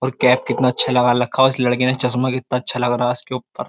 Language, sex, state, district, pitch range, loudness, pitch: Hindi, male, Uttar Pradesh, Jyotiba Phule Nagar, 125-130 Hz, -18 LUFS, 125 Hz